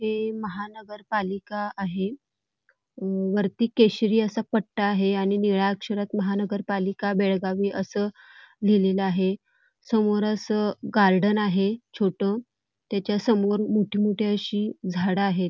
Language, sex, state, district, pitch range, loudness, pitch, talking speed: Marathi, female, Karnataka, Belgaum, 195-215 Hz, -25 LUFS, 205 Hz, 110 wpm